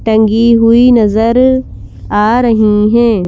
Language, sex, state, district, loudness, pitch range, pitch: Hindi, female, Madhya Pradesh, Bhopal, -9 LUFS, 215-235 Hz, 230 Hz